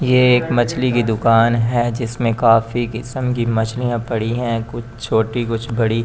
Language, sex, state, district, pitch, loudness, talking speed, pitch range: Hindi, male, Delhi, New Delhi, 120 Hz, -18 LUFS, 180 wpm, 115-120 Hz